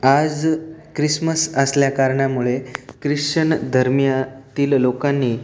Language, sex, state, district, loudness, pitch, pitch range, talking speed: Marathi, male, Maharashtra, Aurangabad, -19 LUFS, 140 Hz, 130-155 Hz, 100 wpm